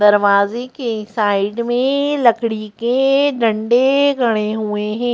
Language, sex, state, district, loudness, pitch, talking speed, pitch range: Hindi, female, Madhya Pradesh, Bhopal, -16 LUFS, 235 Hz, 115 wpm, 215-255 Hz